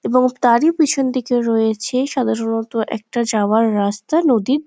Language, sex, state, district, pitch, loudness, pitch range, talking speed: Bengali, female, West Bengal, Jhargram, 240 Hz, -17 LUFS, 225-255 Hz, 130 wpm